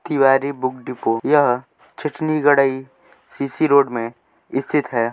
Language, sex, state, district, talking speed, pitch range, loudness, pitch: Hindi, male, Uttar Pradesh, Deoria, 140 wpm, 125-145 Hz, -19 LUFS, 135 Hz